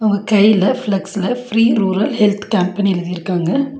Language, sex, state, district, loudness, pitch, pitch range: Tamil, female, Tamil Nadu, Nilgiris, -16 LUFS, 205 Hz, 190-225 Hz